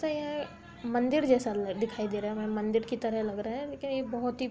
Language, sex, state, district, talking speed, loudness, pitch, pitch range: Hindi, female, Uttar Pradesh, Budaun, 295 wpm, -31 LUFS, 240 Hz, 215-265 Hz